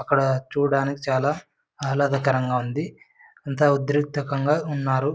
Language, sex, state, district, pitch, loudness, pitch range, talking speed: Telugu, male, Andhra Pradesh, Anantapur, 140 Hz, -23 LUFS, 135-145 Hz, 95 wpm